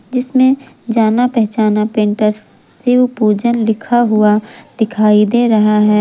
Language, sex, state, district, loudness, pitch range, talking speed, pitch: Hindi, female, Jharkhand, Garhwa, -13 LUFS, 215-240 Hz, 110 wpm, 220 Hz